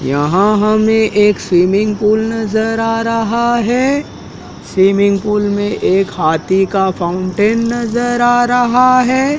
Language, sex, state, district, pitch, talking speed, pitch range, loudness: Hindi, male, Madhya Pradesh, Dhar, 215 Hz, 130 wpm, 195-235 Hz, -13 LUFS